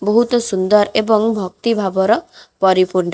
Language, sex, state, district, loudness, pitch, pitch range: Odia, female, Odisha, Khordha, -16 LUFS, 210 Hz, 190-230 Hz